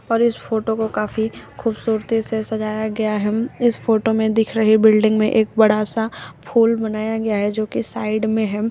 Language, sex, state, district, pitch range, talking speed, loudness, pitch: Hindi, female, Uttar Pradesh, Shamli, 215-225 Hz, 200 wpm, -19 LUFS, 220 Hz